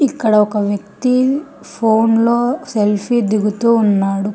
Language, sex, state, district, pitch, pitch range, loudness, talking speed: Telugu, female, Telangana, Hyderabad, 225 Hz, 210-240 Hz, -15 LUFS, 95 wpm